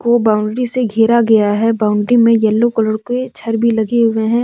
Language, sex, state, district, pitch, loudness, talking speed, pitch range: Hindi, female, Jharkhand, Deoghar, 225 Hz, -14 LUFS, 205 wpm, 220-240 Hz